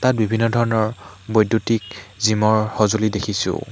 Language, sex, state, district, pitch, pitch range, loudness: Assamese, male, Assam, Hailakandi, 110 Hz, 105-110 Hz, -19 LUFS